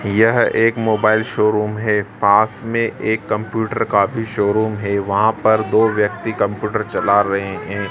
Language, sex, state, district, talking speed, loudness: Hindi, female, Madhya Pradesh, Dhar, 160 wpm, -17 LUFS